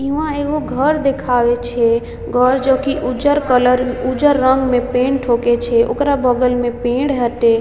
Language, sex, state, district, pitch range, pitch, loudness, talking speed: Maithili, female, Bihar, Samastipur, 245-275 Hz, 255 Hz, -15 LUFS, 165 wpm